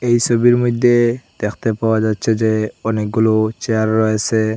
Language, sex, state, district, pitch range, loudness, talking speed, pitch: Bengali, male, Assam, Hailakandi, 110-120 Hz, -16 LUFS, 130 wpm, 110 Hz